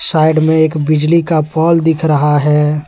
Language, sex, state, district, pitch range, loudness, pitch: Hindi, male, Jharkhand, Deoghar, 150-160 Hz, -12 LUFS, 155 Hz